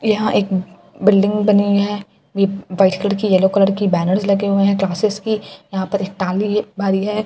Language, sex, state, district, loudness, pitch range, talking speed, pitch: Hindi, female, Bihar, Katihar, -17 LUFS, 190-205 Hz, 225 wpm, 200 Hz